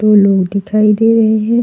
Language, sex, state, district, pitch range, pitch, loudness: Hindi, female, Uttar Pradesh, Jalaun, 200-220 Hz, 215 Hz, -11 LUFS